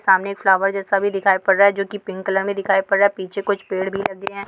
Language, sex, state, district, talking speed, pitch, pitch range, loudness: Hindi, female, Bihar, Jamui, 320 wpm, 195 Hz, 195-200 Hz, -19 LUFS